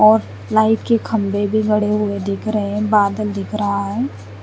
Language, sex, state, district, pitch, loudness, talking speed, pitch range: Hindi, female, Chandigarh, Chandigarh, 210 Hz, -18 LUFS, 190 wpm, 200-215 Hz